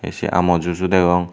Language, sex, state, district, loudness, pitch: Chakma, male, Tripura, Dhalai, -18 LUFS, 90 Hz